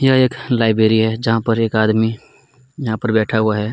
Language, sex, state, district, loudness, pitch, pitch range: Hindi, male, Chhattisgarh, Kabirdham, -16 LUFS, 115 Hz, 110-120 Hz